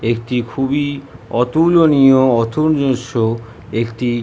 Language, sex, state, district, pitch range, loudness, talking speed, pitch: Bengali, male, West Bengal, North 24 Parganas, 115-140 Hz, -15 LUFS, 55 wpm, 125 Hz